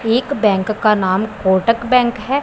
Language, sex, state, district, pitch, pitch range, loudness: Hindi, female, Punjab, Pathankot, 220 Hz, 200-245 Hz, -16 LUFS